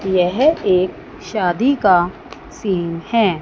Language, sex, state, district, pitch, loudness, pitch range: Hindi, female, Chandigarh, Chandigarh, 190 Hz, -17 LUFS, 180-270 Hz